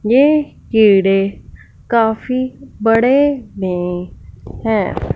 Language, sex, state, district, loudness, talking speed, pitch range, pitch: Hindi, female, Punjab, Fazilka, -15 LUFS, 70 wpm, 180-255 Hz, 220 Hz